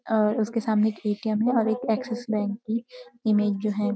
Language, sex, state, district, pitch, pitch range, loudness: Hindi, female, Uttarakhand, Uttarkashi, 220 Hz, 210-230 Hz, -25 LUFS